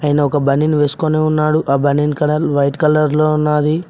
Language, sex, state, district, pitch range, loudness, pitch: Telugu, male, Telangana, Mahabubabad, 145-155 Hz, -15 LUFS, 150 Hz